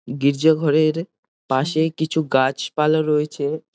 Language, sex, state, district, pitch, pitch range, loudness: Bengali, male, West Bengal, Jalpaiguri, 150 Hz, 140-160 Hz, -20 LUFS